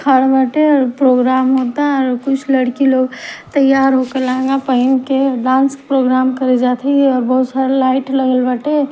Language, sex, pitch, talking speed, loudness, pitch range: Bhojpuri, female, 265 Hz, 155 wpm, -14 LUFS, 255-275 Hz